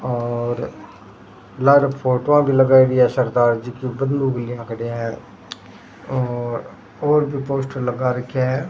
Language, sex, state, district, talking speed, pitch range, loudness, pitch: Rajasthani, male, Rajasthan, Churu, 140 wpm, 120-135 Hz, -19 LUFS, 125 Hz